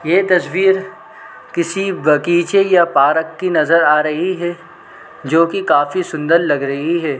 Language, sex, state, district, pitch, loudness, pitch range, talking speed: Hindi, male, Chhattisgarh, Bilaspur, 170 Hz, -15 LUFS, 150-185 Hz, 160 wpm